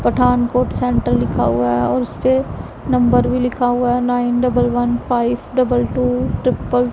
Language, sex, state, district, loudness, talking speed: Hindi, female, Punjab, Pathankot, -17 LUFS, 190 wpm